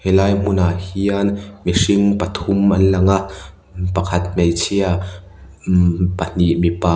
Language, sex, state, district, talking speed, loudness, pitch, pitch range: Mizo, male, Mizoram, Aizawl, 130 wpm, -17 LUFS, 95 Hz, 90-100 Hz